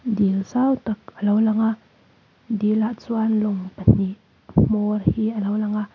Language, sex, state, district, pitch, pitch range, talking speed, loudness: Mizo, female, Mizoram, Aizawl, 215 Hz, 205-220 Hz, 170 wpm, -21 LUFS